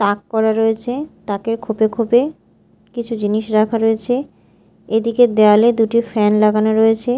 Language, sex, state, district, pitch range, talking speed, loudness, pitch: Bengali, female, Odisha, Malkangiri, 215-235 Hz, 135 wpm, -16 LUFS, 225 Hz